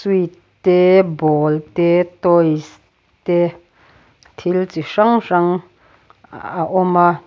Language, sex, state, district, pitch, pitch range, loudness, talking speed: Mizo, female, Mizoram, Aizawl, 175 Hz, 160-180 Hz, -16 LUFS, 105 wpm